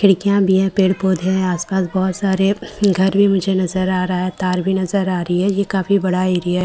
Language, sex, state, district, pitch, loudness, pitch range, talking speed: Hindi, female, Bihar, Katihar, 190 Hz, -17 LUFS, 185-195 Hz, 255 wpm